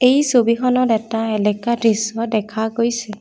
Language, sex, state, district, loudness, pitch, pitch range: Assamese, female, Assam, Kamrup Metropolitan, -18 LUFS, 230 Hz, 220-235 Hz